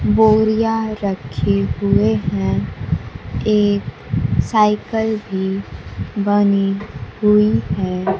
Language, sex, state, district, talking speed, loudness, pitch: Hindi, female, Bihar, Kaimur, 75 wpm, -18 LUFS, 200 Hz